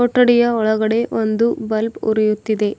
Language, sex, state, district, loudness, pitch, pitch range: Kannada, female, Karnataka, Bidar, -17 LUFS, 220 Hz, 215-235 Hz